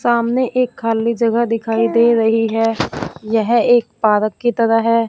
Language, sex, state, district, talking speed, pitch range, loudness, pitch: Hindi, female, Punjab, Fazilka, 165 wpm, 225-235 Hz, -16 LUFS, 230 Hz